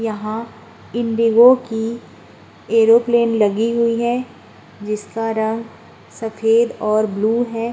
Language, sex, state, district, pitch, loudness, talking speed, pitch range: Hindi, female, Uttar Pradesh, Muzaffarnagar, 225 Hz, -17 LUFS, 100 wpm, 220-235 Hz